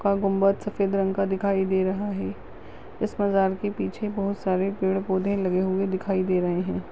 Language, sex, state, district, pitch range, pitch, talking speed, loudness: Hindi, female, Maharashtra, Nagpur, 190-200 Hz, 195 Hz, 200 wpm, -25 LUFS